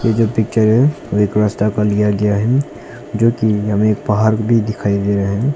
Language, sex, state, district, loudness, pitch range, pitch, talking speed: Hindi, male, Arunachal Pradesh, Longding, -15 LUFS, 105-115 Hz, 105 Hz, 185 wpm